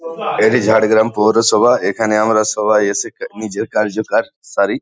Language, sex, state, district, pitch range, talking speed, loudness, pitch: Bengali, male, West Bengal, Jhargram, 105-110 Hz, 135 wpm, -15 LUFS, 110 Hz